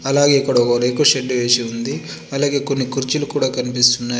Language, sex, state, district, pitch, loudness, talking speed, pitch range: Telugu, male, Telangana, Adilabad, 130 Hz, -17 LUFS, 155 wpm, 120-140 Hz